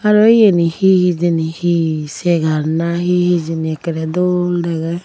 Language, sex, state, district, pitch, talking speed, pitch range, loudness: Chakma, female, Tripura, Unakoti, 170 Hz, 145 wpm, 160-180 Hz, -15 LUFS